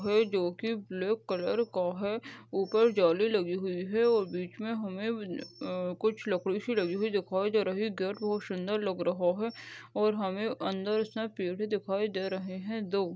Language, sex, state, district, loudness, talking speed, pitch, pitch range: Hindi, female, Goa, North and South Goa, -31 LUFS, 180 wpm, 205 Hz, 185-220 Hz